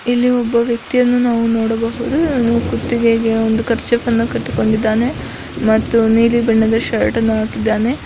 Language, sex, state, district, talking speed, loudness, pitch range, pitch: Kannada, female, Karnataka, Dakshina Kannada, 120 wpm, -15 LUFS, 225-240 Hz, 230 Hz